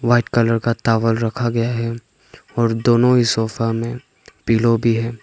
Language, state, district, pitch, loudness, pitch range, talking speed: Hindi, Arunachal Pradesh, Papum Pare, 115 Hz, -18 LUFS, 115-120 Hz, 170 wpm